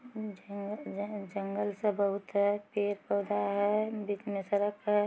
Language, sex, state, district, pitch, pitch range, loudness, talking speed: Magahi, female, Bihar, Samastipur, 205 Hz, 200-210 Hz, -33 LUFS, 120 wpm